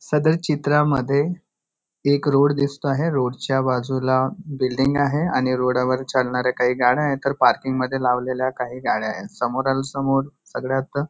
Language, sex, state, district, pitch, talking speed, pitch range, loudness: Marathi, male, Maharashtra, Nagpur, 135 Hz, 155 wpm, 130-140 Hz, -21 LUFS